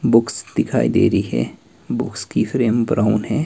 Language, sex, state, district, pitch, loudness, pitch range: Hindi, male, Himachal Pradesh, Shimla, 115 Hz, -19 LUFS, 110-120 Hz